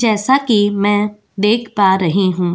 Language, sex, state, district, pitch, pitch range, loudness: Hindi, female, Goa, North and South Goa, 205 Hz, 195-215 Hz, -15 LUFS